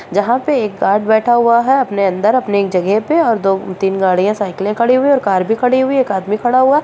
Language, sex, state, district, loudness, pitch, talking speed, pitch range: Hindi, female, Bihar, Purnia, -14 LUFS, 215 Hz, 265 wpm, 195-255 Hz